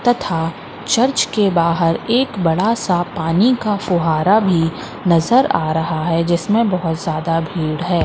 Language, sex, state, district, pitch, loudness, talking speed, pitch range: Hindi, female, Madhya Pradesh, Katni, 175 Hz, -17 LUFS, 150 wpm, 165-215 Hz